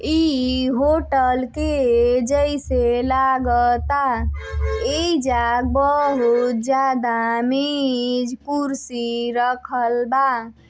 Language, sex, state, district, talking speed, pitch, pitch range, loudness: Bhojpuri, female, Uttar Pradesh, Deoria, 75 wpm, 255 Hz, 240-275 Hz, -20 LUFS